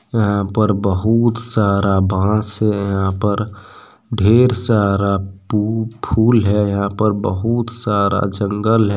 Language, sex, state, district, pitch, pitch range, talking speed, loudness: Hindi, male, Jharkhand, Deoghar, 105 Hz, 100-110 Hz, 125 wpm, -16 LUFS